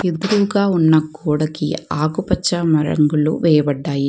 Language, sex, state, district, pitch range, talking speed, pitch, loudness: Telugu, female, Telangana, Hyderabad, 150-175 Hz, 90 wpm, 155 Hz, -17 LUFS